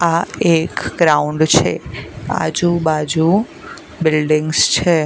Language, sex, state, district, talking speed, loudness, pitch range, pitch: Gujarati, female, Gujarat, Gandhinagar, 95 wpm, -16 LUFS, 155-170 Hz, 160 Hz